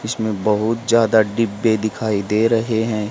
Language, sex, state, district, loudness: Hindi, female, Haryana, Charkhi Dadri, -18 LUFS